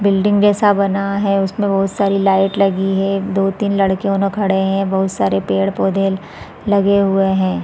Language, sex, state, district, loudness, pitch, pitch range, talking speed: Hindi, female, Chhattisgarh, Raigarh, -16 LUFS, 195 Hz, 190-200 Hz, 190 wpm